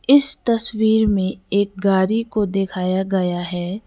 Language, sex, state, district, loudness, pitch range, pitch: Hindi, female, Sikkim, Gangtok, -19 LUFS, 190-220 Hz, 195 Hz